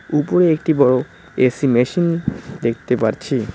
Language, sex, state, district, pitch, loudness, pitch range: Bengali, male, West Bengal, Cooch Behar, 150 Hz, -18 LUFS, 130-170 Hz